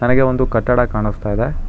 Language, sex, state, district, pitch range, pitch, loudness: Kannada, male, Karnataka, Bangalore, 105-125 Hz, 120 Hz, -17 LUFS